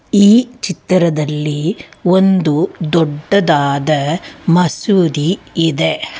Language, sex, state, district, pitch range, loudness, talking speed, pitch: Kannada, female, Karnataka, Bangalore, 150-185 Hz, -14 LUFS, 60 wpm, 170 Hz